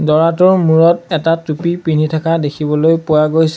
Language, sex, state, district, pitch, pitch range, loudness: Assamese, male, Assam, Sonitpur, 160 Hz, 155-165 Hz, -13 LUFS